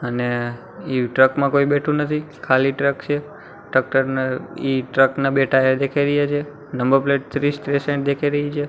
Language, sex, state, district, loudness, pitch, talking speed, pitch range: Gujarati, male, Gujarat, Gandhinagar, -20 LUFS, 140 Hz, 195 wpm, 130-145 Hz